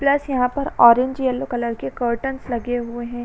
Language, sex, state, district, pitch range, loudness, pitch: Hindi, female, Bihar, Saran, 240-265 Hz, -20 LUFS, 245 Hz